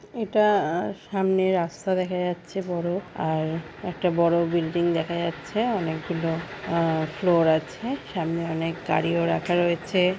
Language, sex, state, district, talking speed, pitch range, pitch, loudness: Bengali, female, West Bengal, Paschim Medinipur, 130 wpm, 165-185 Hz, 170 Hz, -25 LUFS